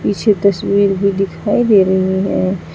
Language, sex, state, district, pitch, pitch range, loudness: Hindi, female, Uttar Pradesh, Saharanpur, 195 Hz, 190-200 Hz, -14 LUFS